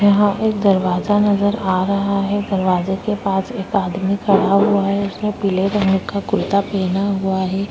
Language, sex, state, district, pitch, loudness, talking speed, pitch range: Hindi, female, Uttar Pradesh, Budaun, 200 Hz, -18 LUFS, 180 wpm, 190-205 Hz